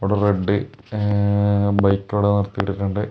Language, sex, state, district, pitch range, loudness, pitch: Malayalam, male, Kerala, Kasaragod, 100-105 Hz, -20 LUFS, 100 Hz